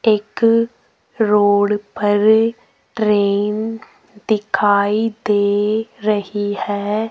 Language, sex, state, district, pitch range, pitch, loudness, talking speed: Hindi, female, Rajasthan, Jaipur, 205-220 Hz, 210 Hz, -17 LUFS, 70 wpm